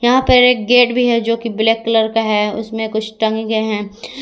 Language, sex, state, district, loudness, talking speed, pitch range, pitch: Hindi, female, Jharkhand, Garhwa, -15 LUFS, 240 wpm, 220-240 Hz, 225 Hz